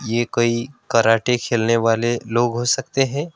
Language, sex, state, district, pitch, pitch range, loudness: Hindi, male, West Bengal, Alipurduar, 120 Hz, 115-130 Hz, -19 LUFS